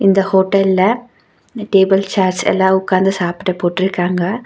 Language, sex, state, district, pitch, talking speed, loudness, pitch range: Tamil, female, Tamil Nadu, Nilgiris, 190 Hz, 110 wpm, -15 LUFS, 185-195 Hz